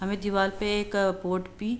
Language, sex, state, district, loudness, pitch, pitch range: Hindi, female, Uttar Pradesh, Jalaun, -28 LUFS, 200 Hz, 190-205 Hz